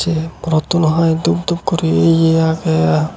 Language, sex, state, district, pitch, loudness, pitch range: Chakma, male, Tripura, Unakoti, 160 Hz, -15 LUFS, 155-165 Hz